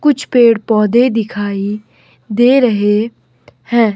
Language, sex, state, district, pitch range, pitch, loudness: Hindi, male, Himachal Pradesh, Shimla, 205-240 Hz, 220 Hz, -13 LUFS